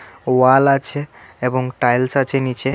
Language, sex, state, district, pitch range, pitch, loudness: Bengali, male, Tripura, West Tripura, 125-135 Hz, 130 Hz, -17 LUFS